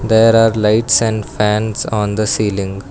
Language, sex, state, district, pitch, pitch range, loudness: English, male, Karnataka, Bangalore, 110 Hz, 105-115 Hz, -14 LUFS